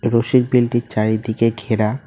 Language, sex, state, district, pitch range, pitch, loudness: Bengali, male, West Bengal, Cooch Behar, 110-120 Hz, 115 Hz, -18 LUFS